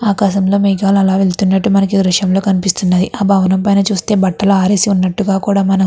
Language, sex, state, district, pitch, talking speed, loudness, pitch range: Telugu, female, Andhra Pradesh, Guntur, 195 Hz, 185 wpm, -13 LUFS, 190-200 Hz